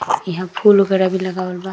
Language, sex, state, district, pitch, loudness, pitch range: Bhojpuri, female, Uttar Pradesh, Gorakhpur, 185 Hz, -17 LUFS, 185-190 Hz